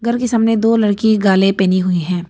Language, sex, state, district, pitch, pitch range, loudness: Hindi, female, Arunachal Pradesh, Papum Pare, 205 Hz, 185-225 Hz, -14 LUFS